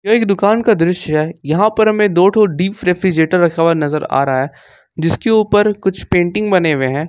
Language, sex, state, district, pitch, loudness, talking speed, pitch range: Hindi, male, Jharkhand, Ranchi, 180 Hz, -14 LUFS, 210 wpm, 160-210 Hz